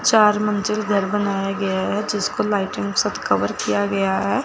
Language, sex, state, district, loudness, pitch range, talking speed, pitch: Hindi, female, Chandigarh, Chandigarh, -20 LUFS, 195-210 Hz, 175 wpm, 205 Hz